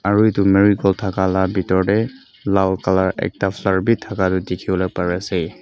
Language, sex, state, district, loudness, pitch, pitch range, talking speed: Nagamese, male, Mizoram, Aizawl, -18 LUFS, 95 Hz, 95-100 Hz, 180 wpm